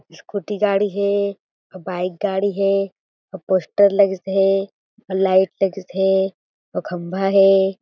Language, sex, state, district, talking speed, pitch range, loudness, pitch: Chhattisgarhi, female, Chhattisgarh, Jashpur, 140 wpm, 190-200 Hz, -19 LUFS, 195 Hz